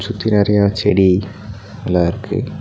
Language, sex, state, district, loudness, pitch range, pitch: Tamil, male, Tamil Nadu, Nilgiris, -16 LUFS, 95-105 Hz, 105 Hz